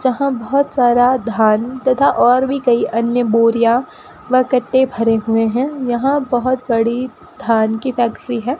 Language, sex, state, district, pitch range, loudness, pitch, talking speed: Hindi, female, Rajasthan, Bikaner, 230-260 Hz, -15 LUFS, 245 Hz, 155 wpm